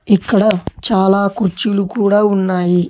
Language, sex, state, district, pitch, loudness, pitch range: Telugu, male, Telangana, Hyderabad, 200 Hz, -14 LUFS, 190-210 Hz